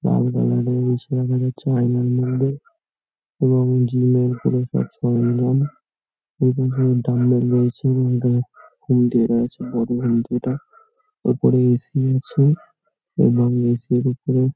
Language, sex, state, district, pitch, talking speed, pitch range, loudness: Bengali, male, West Bengal, North 24 Parganas, 125 Hz, 100 wpm, 120-130 Hz, -19 LUFS